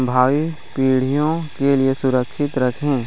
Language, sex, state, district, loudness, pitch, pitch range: Chhattisgarhi, male, Chhattisgarh, Raigarh, -19 LUFS, 135 Hz, 130-145 Hz